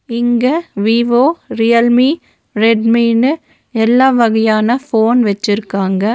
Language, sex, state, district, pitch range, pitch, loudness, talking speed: Tamil, female, Tamil Nadu, Nilgiris, 220-250 Hz, 235 Hz, -13 LUFS, 80 wpm